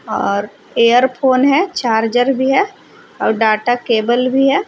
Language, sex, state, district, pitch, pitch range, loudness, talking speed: Hindi, female, Jharkhand, Palamu, 245 Hz, 225-270 Hz, -15 LUFS, 155 wpm